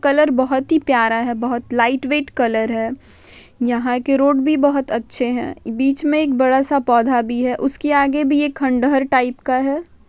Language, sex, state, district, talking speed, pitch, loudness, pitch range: Hindi, female, Bihar, Saran, 190 wpm, 265 Hz, -17 LUFS, 245-285 Hz